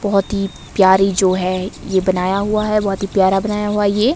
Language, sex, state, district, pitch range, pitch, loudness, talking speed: Hindi, female, Himachal Pradesh, Shimla, 190-210 Hz, 195 Hz, -16 LUFS, 215 wpm